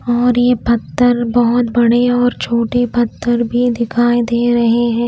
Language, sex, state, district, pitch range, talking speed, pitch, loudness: Hindi, female, Delhi, New Delhi, 235-245 Hz, 155 wpm, 240 Hz, -14 LUFS